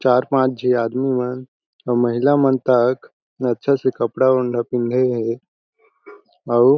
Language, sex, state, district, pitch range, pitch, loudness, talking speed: Chhattisgarhi, male, Chhattisgarh, Jashpur, 120-130 Hz, 125 Hz, -19 LUFS, 140 wpm